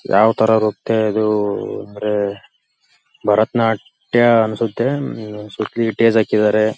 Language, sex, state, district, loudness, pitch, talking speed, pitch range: Kannada, male, Karnataka, Belgaum, -17 LUFS, 110 Hz, 105 wpm, 105-115 Hz